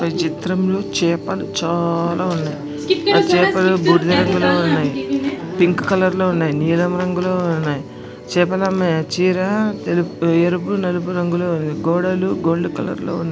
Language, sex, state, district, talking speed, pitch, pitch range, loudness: Telugu, male, Andhra Pradesh, Anantapur, 120 wpm, 175 Hz, 165-185 Hz, -18 LUFS